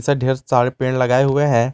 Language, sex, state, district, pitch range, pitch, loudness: Hindi, male, Jharkhand, Garhwa, 125-135 Hz, 130 Hz, -17 LUFS